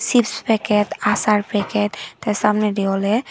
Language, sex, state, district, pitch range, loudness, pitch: Chakma, female, Tripura, Dhalai, 205-215 Hz, -19 LUFS, 210 Hz